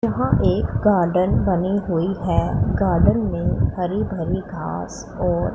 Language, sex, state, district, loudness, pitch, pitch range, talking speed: Hindi, female, Punjab, Pathankot, -20 LUFS, 185 Hz, 175-200 Hz, 130 wpm